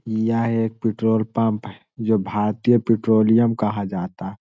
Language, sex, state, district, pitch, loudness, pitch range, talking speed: Hindi, male, Bihar, Jamui, 110 Hz, -21 LUFS, 105-115 Hz, 135 wpm